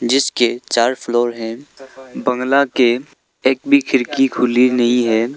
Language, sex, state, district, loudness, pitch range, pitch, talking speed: Hindi, male, Arunachal Pradesh, Lower Dibang Valley, -16 LUFS, 120-135 Hz, 125 Hz, 135 wpm